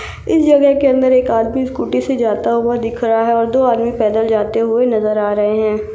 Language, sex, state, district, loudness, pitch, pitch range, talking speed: Hindi, female, Maharashtra, Solapur, -14 LUFS, 230 Hz, 220-255 Hz, 230 wpm